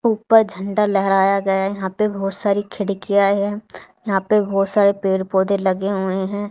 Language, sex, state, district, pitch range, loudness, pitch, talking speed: Hindi, female, Haryana, Charkhi Dadri, 195-205 Hz, -19 LUFS, 200 Hz, 185 wpm